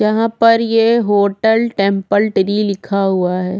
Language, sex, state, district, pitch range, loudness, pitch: Hindi, female, Chhattisgarh, Korba, 195-225 Hz, -14 LUFS, 205 Hz